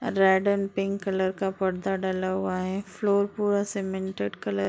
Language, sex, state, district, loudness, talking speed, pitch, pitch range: Hindi, female, Uttar Pradesh, Deoria, -27 LUFS, 180 wpm, 195 Hz, 190-200 Hz